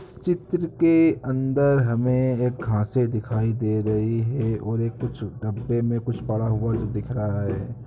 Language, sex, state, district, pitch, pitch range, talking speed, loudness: Hindi, male, Uttar Pradesh, Ghazipur, 115 Hz, 110-125 Hz, 165 wpm, -24 LUFS